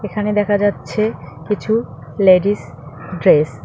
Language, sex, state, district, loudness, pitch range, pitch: Bengali, female, West Bengal, Cooch Behar, -17 LUFS, 145-210 Hz, 185 Hz